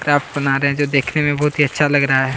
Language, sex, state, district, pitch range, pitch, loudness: Hindi, male, Chhattisgarh, Kabirdham, 140-145 Hz, 145 Hz, -17 LUFS